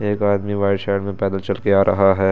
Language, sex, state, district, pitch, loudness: Hindi, male, Delhi, New Delhi, 100 Hz, -19 LUFS